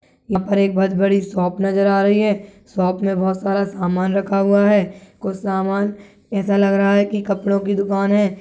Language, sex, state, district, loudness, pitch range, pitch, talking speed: Hindi, male, Chhattisgarh, Balrampur, -18 LUFS, 195-200 Hz, 195 Hz, 205 wpm